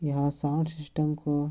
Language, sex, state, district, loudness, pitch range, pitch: Hindi, male, Bihar, Sitamarhi, -29 LUFS, 145-155 Hz, 150 Hz